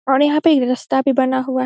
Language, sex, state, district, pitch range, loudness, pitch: Hindi, female, Bihar, Saharsa, 260-275 Hz, -16 LUFS, 265 Hz